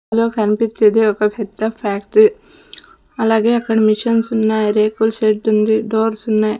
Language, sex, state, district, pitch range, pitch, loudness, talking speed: Telugu, female, Andhra Pradesh, Sri Satya Sai, 215-230 Hz, 220 Hz, -16 LUFS, 120 wpm